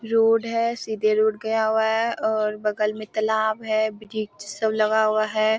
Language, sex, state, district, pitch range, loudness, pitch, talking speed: Hindi, female, Bihar, Bhagalpur, 215-220 Hz, -23 LUFS, 220 Hz, 180 wpm